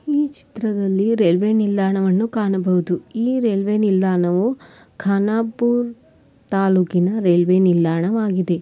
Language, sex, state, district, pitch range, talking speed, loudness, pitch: Kannada, female, Karnataka, Belgaum, 185-225 Hz, 90 wpm, -19 LUFS, 195 Hz